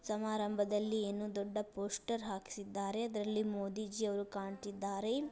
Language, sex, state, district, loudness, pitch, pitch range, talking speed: Kannada, female, Karnataka, Dharwad, -39 LUFS, 205 Hz, 200-215 Hz, 100 wpm